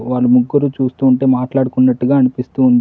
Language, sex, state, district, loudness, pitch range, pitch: Telugu, male, Telangana, Mahabubabad, -14 LUFS, 125-135 Hz, 130 Hz